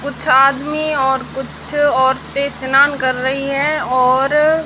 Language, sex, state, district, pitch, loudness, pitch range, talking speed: Hindi, female, Rajasthan, Jaisalmer, 275 Hz, -15 LUFS, 265-290 Hz, 130 wpm